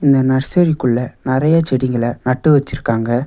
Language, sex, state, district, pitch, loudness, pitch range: Tamil, male, Tamil Nadu, Nilgiris, 130 Hz, -16 LUFS, 125-145 Hz